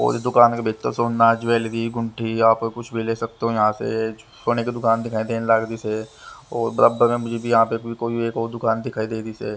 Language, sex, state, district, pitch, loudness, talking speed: Hindi, male, Haryana, Rohtak, 115 Hz, -21 LUFS, 230 wpm